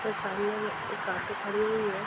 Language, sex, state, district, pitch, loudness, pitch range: Hindi, female, Bihar, Darbhanga, 210 Hz, -31 LUFS, 205-215 Hz